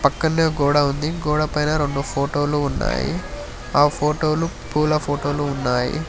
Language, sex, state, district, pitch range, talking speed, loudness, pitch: Telugu, male, Telangana, Hyderabad, 145-155 Hz, 150 wpm, -21 LUFS, 145 Hz